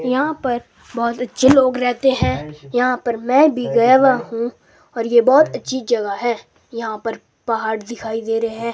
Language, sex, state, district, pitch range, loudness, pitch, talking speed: Hindi, male, Himachal Pradesh, Shimla, 230-255 Hz, -18 LUFS, 240 Hz, 185 wpm